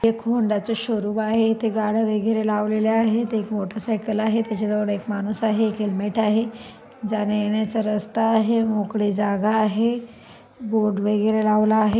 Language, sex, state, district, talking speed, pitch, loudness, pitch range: Marathi, female, Maharashtra, Pune, 155 wpm, 215 Hz, -22 LUFS, 210-225 Hz